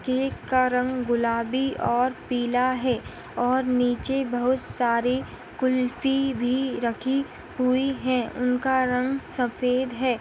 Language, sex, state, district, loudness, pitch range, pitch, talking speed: Hindi, female, Maharashtra, Sindhudurg, -25 LUFS, 245-260 Hz, 255 Hz, 115 wpm